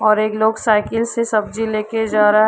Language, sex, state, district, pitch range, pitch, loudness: Hindi, female, Uttar Pradesh, Lucknow, 215-225 Hz, 215 Hz, -17 LUFS